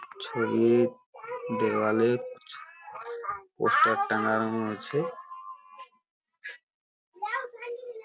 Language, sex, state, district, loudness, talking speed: Bengali, male, West Bengal, Purulia, -28 LUFS, 35 wpm